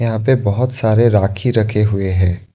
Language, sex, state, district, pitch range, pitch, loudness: Hindi, male, Assam, Kamrup Metropolitan, 100-120 Hz, 110 Hz, -15 LUFS